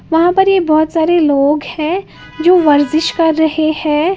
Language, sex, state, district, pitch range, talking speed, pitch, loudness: Hindi, female, Uttar Pradesh, Lalitpur, 305-345 Hz, 175 wpm, 320 Hz, -12 LUFS